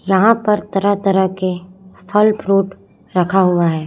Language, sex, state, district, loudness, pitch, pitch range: Hindi, male, Chhattisgarh, Raipur, -15 LUFS, 190 Hz, 185-205 Hz